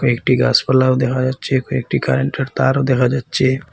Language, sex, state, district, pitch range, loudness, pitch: Bengali, male, Assam, Hailakandi, 125-130 Hz, -16 LUFS, 130 Hz